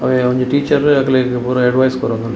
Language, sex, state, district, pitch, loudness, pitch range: Tulu, male, Karnataka, Dakshina Kannada, 130 Hz, -14 LUFS, 125-135 Hz